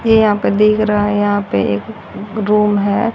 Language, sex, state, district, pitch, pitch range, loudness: Hindi, female, Haryana, Rohtak, 210 Hz, 205-215 Hz, -15 LUFS